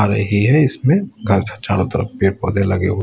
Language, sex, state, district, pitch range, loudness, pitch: Hindi, male, Bihar, West Champaran, 100-125 Hz, -17 LUFS, 105 Hz